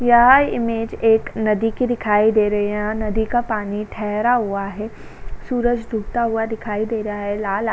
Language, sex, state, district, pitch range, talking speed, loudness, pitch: Hindi, female, Uttar Pradesh, Jalaun, 210-235 Hz, 195 wpm, -19 LUFS, 220 Hz